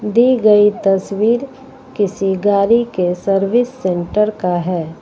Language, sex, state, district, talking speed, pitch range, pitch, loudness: Hindi, female, Uttar Pradesh, Lucknow, 120 wpm, 190-230 Hz, 205 Hz, -15 LUFS